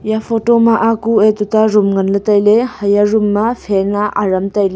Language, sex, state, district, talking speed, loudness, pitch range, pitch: Wancho, female, Arunachal Pradesh, Longding, 200 wpm, -13 LUFS, 205-225 Hz, 210 Hz